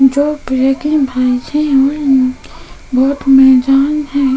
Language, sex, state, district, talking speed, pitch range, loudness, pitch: Hindi, female, Goa, North and South Goa, 125 wpm, 265-285 Hz, -12 LUFS, 270 Hz